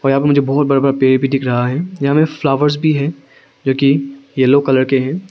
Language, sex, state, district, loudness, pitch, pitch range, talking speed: Hindi, male, Arunachal Pradesh, Longding, -14 LUFS, 140 Hz, 135-145 Hz, 250 wpm